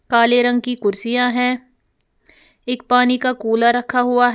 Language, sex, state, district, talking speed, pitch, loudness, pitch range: Hindi, female, Uttar Pradesh, Lalitpur, 165 wpm, 245 Hz, -17 LUFS, 240-250 Hz